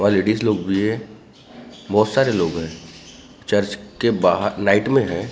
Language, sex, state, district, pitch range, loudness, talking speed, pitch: Hindi, male, Maharashtra, Gondia, 95-110 Hz, -19 LUFS, 170 wpm, 105 Hz